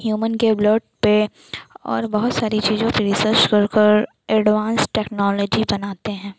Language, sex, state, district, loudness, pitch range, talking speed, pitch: Hindi, female, Chhattisgarh, Sukma, -18 LUFS, 210-220 Hz, 150 wpm, 215 Hz